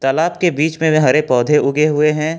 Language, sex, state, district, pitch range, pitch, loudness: Hindi, male, Jharkhand, Ranchi, 150-160 Hz, 155 Hz, -15 LUFS